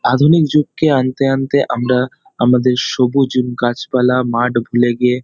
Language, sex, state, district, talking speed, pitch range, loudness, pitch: Bengali, male, West Bengal, North 24 Parganas, 135 wpm, 125-135 Hz, -15 LUFS, 125 Hz